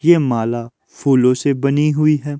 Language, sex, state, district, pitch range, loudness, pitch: Hindi, male, Himachal Pradesh, Shimla, 125-150 Hz, -16 LUFS, 140 Hz